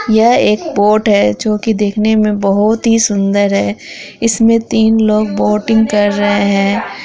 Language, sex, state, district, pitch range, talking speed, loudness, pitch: Hindi, female, Bihar, Araria, 205-220 Hz, 160 wpm, -12 LUFS, 210 Hz